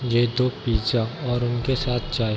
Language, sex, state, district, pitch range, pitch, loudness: Hindi, male, Bihar, Darbhanga, 115-125 Hz, 120 Hz, -23 LUFS